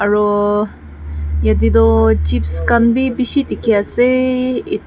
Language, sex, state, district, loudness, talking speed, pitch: Nagamese, female, Nagaland, Kohima, -15 LUFS, 125 wpm, 205 Hz